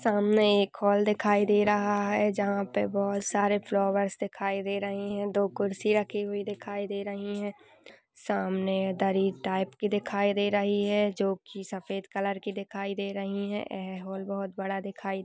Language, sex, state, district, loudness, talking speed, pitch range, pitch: Hindi, female, Uttar Pradesh, Budaun, -29 LUFS, 160 wpm, 195-205 Hz, 200 Hz